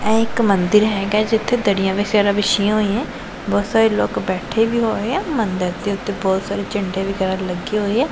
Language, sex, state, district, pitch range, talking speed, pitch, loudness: Punjabi, female, Punjab, Pathankot, 195-220 Hz, 205 wpm, 205 Hz, -19 LUFS